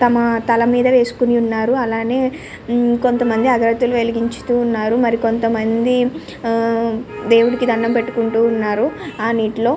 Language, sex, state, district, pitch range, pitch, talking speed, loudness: Telugu, female, Andhra Pradesh, Srikakulam, 230-245 Hz, 235 Hz, 105 wpm, -17 LUFS